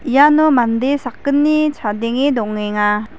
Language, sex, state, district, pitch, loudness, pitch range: Garo, female, Meghalaya, West Garo Hills, 250 Hz, -15 LUFS, 215-290 Hz